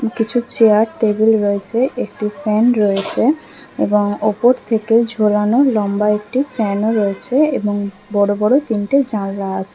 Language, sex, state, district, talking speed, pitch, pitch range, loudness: Bengali, female, West Bengal, Kolkata, 140 wpm, 215 Hz, 205-230 Hz, -16 LUFS